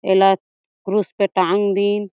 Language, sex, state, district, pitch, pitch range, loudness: Chhattisgarhi, female, Chhattisgarh, Jashpur, 195 Hz, 190-205 Hz, -18 LUFS